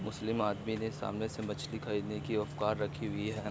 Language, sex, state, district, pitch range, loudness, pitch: Hindi, male, Bihar, Begusarai, 105-110 Hz, -36 LUFS, 110 Hz